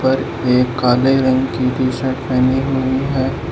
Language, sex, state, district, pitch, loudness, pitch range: Hindi, male, Arunachal Pradesh, Lower Dibang Valley, 130 Hz, -16 LUFS, 125-130 Hz